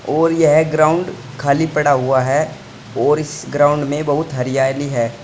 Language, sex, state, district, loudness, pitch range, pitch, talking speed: Hindi, male, Uttar Pradesh, Saharanpur, -16 LUFS, 135-155 Hz, 145 Hz, 160 wpm